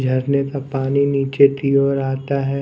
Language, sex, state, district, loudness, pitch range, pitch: Hindi, male, Chhattisgarh, Raipur, -18 LUFS, 135-140 Hz, 140 Hz